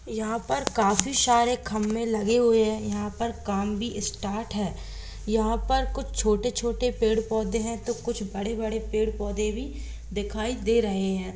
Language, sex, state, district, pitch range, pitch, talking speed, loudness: Hindi, female, Jharkhand, Jamtara, 210-235 Hz, 220 Hz, 155 wpm, -26 LUFS